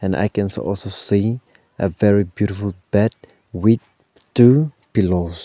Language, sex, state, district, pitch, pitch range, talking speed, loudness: English, male, Arunachal Pradesh, Lower Dibang Valley, 100 Hz, 95-110 Hz, 120 wpm, -19 LUFS